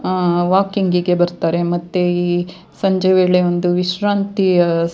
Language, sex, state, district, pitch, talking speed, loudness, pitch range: Kannada, female, Karnataka, Dakshina Kannada, 180 Hz, 120 wpm, -16 LUFS, 175-185 Hz